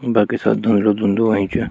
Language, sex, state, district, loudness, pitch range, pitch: Garhwali, male, Uttarakhand, Tehri Garhwal, -17 LUFS, 105-115 Hz, 105 Hz